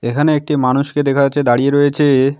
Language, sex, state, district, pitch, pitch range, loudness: Bengali, male, West Bengal, Alipurduar, 140 Hz, 135-145 Hz, -14 LUFS